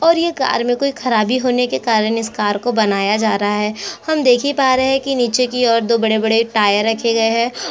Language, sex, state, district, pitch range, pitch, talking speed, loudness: Hindi, female, Chhattisgarh, Korba, 220-255 Hz, 230 Hz, 255 wpm, -16 LUFS